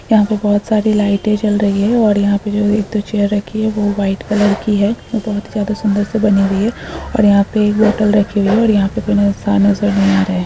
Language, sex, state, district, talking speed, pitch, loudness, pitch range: Hindi, female, Uttar Pradesh, Deoria, 280 wpm, 205 Hz, -14 LUFS, 200-215 Hz